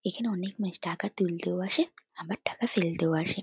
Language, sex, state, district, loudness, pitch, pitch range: Bengali, female, West Bengal, North 24 Parganas, -31 LUFS, 195 Hz, 175-210 Hz